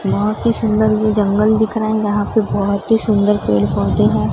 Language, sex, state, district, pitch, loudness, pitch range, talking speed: Hindi, female, Maharashtra, Gondia, 215 Hz, -16 LUFS, 205-220 Hz, 220 wpm